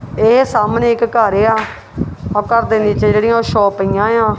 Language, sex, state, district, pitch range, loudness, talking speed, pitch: Punjabi, female, Punjab, Kapurthala, 210-230 Hz, -14 LUFS, 190 wpm, 220 Hz